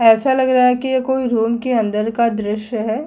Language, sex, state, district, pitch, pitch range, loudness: Hindi, female, Uttar Pradesh, Jyotiba Phule Nagar, 235 Hz, 220-260 Hz, -17 LUFS